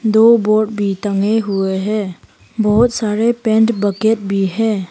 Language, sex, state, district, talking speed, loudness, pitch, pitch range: Hindi, female, Arunachal Pradesh, Papum Pare, 145 wpm, -15 LUFS, 215 Hz, 200-220 Hz